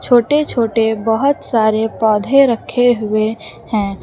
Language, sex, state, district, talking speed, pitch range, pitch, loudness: Hindi, female, Uttar Pradesh, Lucknow, 120 wpm, 215-245 Hz, 225 Hz, -15 LUFS